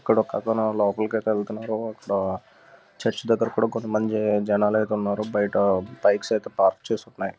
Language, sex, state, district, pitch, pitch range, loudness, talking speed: Telugu, male, Andhra Pradesh, Visakhapatnam, 110 Hz, 100-110 Hz, -24 LUFS, 160 wpm